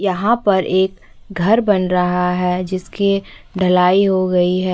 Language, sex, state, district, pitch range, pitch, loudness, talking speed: Hindi, female, Chhattisgarh, Bastar, 180-195 Hz, 185 Hz, -16 LUFS, 150 wpm